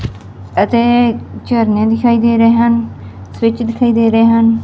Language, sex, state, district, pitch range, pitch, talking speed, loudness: Punjabi, female, Punjab, Fazilka, 210-235 Hz, 230 Hz, 140 wpm, -12 LUFS